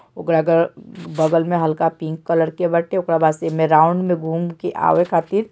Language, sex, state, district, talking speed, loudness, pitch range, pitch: Bhojpuri, male, Bihar, Saran, 205 wpm, -18 LUFS, 160-175 Hz, 165 Hz